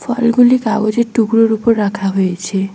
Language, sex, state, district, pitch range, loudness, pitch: Bengali, female, West Bengal, Cooch Behar, 195-235 Hz, -14 LUFS, 220 Hz